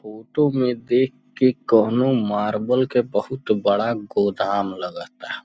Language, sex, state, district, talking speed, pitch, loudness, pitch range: Bhojpuri, male, Uttar Pradesh, Gorakhpur, 120 wpm, 115 Hz, -21 LUFS, 105-125 Hz